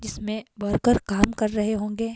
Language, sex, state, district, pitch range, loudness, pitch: Hindi, female, Himachal Pradesh, Shimla, 210-225 Hz, -24 LUFS, 215 Hz